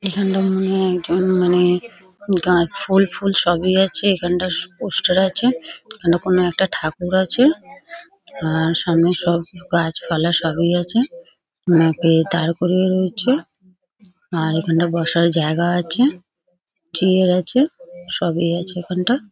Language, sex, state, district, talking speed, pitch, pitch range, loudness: Bengali, female, West Bengal, Paschim Medinipur, 120 wpm, 180 Hz, 170-195 Hz, -18 LUFS